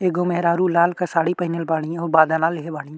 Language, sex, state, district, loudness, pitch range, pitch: Bhojpuri, male, Uttar Pradesh, Ghazipur, -20 LUFS, 160-175 Hz, 170 Hz